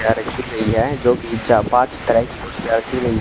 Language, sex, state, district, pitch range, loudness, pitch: Hindi, male, Haryana, Charkhi Dadri, 110-125 Hz, -18 LUFS, 115 Hz